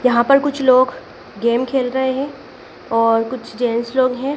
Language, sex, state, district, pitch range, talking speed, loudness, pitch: Hindi, female, Madhya Pradesh, Dhar, 235-265 Hz, 180 wpm, -17 LUFS, 255 Hz